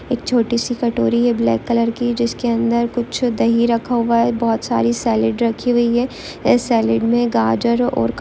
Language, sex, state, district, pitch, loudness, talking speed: Hindi, female, Chhattisgarh, Kabirdham, 235 Hz, -17 LUFS, 190 wpm